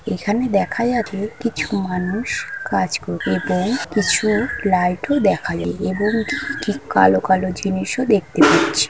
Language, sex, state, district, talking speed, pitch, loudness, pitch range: Bengali, female, West Bengal, Kolkata, 130 wpm, 205 Hz, -19 LUFS, 185-235 Hz